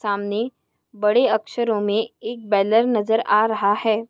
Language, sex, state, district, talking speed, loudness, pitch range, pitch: Hindi, female, Maharashtra, Aurangabad, 145 wpm, -20 LUFS, 210-225 Hz, 220 Hz